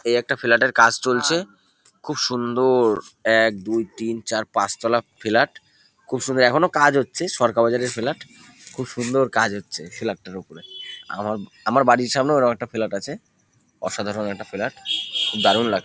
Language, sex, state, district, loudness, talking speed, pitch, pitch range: Bengali, male, West Bengal, North 24 Parganas, -21 LUFS, 180 wpm, 120 Hz, 115-130 Hz